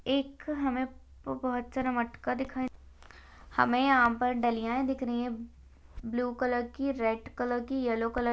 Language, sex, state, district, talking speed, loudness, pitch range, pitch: Hindi, female, Maharashtra, Sindhudurg, 165 wpm, -31 LUFS, 235-260 Hz, 245 Hz